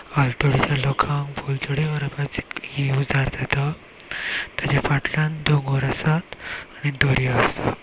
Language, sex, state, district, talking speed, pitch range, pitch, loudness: Konkani, male, Goa, North and South Goa, 100 wpm, 135-145 Hz, 140 Hz, -23 LUFS